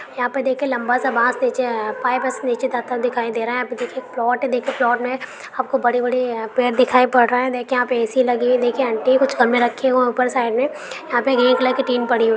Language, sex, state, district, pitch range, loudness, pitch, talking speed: Maithili, female, Bihar, Supaul, 240-255 Hz, -19 LUFS, 250 Hz, 255 wpm